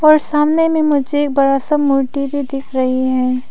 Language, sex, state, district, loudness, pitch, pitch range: Hindi, female, Arunachal Pradesh, Papum Pare, -15 LUFS, 280 Hz, 265-300 Hz